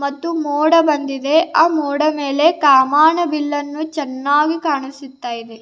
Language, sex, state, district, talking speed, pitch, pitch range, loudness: Kannada, female, Karnataka, Bidar, 95 wpm, 295 Hz, 280-315 Hz, -16 LUFS